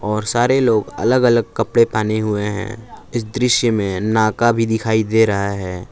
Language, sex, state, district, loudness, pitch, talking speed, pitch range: Hindi, male, Jharkhand, Palamu, -17 LUFS, 110 Hz, 185 wpm, 105-120 Hz